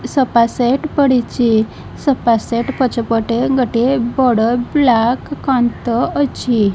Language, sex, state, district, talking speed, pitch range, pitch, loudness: Odia, female, Odisha, Malkangiri, 105 wpm, 235-265 Hz, 245 Hz, -15 LUFS